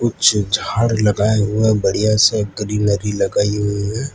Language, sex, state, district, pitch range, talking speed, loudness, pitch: Hindi, male, Gujarat, Valsad, 105-110 Hz, 160 wpm, -17 LUFS, 105 Hz